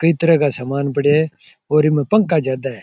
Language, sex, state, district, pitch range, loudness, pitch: Rajasthani, male, Rajasthan, Churu, 140-160 Hz, -17 LUFS, 150 Hz